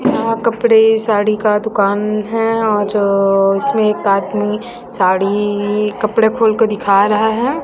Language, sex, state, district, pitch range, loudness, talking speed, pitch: Hindi, female, Chhattisgarh, Raipur, 205-225 Hz, -14 LUFS, 140 wpm, 210 Hz